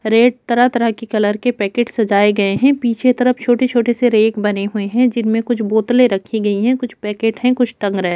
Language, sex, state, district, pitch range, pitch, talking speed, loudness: Hindi, female, Chhattisgarh, Kabirdham, 210-245 Hz, 230 Hz, 230 wpm, -15 LUFS